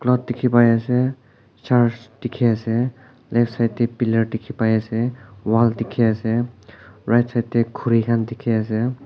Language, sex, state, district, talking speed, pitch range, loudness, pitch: Nagamese, male, Nagaland, Kohima, 160 wpm, 115-125 Hz, -20 LUFS, 115 Hz